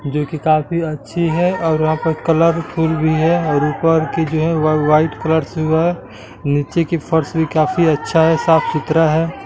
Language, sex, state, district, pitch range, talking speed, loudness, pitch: Hindi, male, Bihar, Gaya, 155-165 Hz, 195 wpm, -16 LUFS, 160 Hz